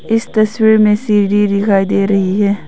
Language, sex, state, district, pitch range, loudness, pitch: Hindi, female, Arunachal Pradesh, Papum Pare, 200-215 Hz, -13 LUFS, 205 Hz